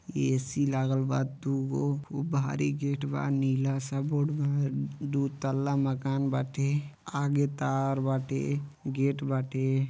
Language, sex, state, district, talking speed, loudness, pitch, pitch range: Bhojpuri, male, Uttar Pradesh, Deoria, 125 wpm, -30 LUFS, 135 Hz, 135-140 Hz